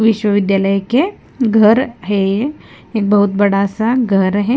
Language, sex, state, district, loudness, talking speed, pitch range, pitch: Hindi, female, Himachal Pradesh, Shimla, -14 LUFS, 130 wpm, 200-235 Hz, 210 Hz